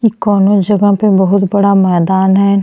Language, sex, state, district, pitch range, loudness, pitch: Bhojpuri, female, Uttar Pradesh, Ghazipur, 190-205 Hz, -10 LUFS, 200 Hz